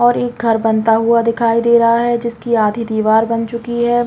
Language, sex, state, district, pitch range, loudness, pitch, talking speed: Hindi, female, Chhattisgarh, Raigarh, 225-235 Hz, -14 LUFS, 230 Hz, 220 wpm